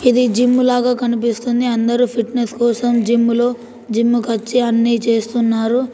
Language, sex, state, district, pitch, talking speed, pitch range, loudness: Telugu, female, Telangana, Nalgonda, 235 Hz, 130 wpm, 230-245 Hz, -16 LUFS